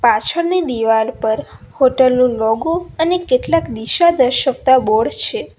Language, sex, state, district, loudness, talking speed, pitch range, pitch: Gujarati, female, Gujarat, Valsad, -15 LUFS, 120 wpm, 225-330 Hz, 260 Hz